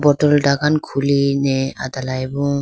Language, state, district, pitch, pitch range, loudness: Idu Mishmi, Arunachal Pradesh, Lower Dibang Valley, 140 Hz, 135-145 Hz, -18 LUFS